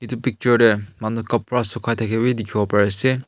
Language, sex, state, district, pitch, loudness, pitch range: Nagamese, male, Nagaland, Kohima, 115 Hz, -20 LUFS, 110-125 Hz